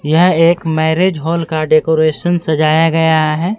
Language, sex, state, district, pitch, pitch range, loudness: Hindi, male, Bihar, Katihar, 160 Hz, 155-170 Hz, -13 LUFS